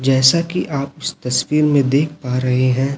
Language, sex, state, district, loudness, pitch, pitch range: Hindi, male, Chhattisgarh, Raipur, -17 LUFS, 140 Hz, 130-150 Hz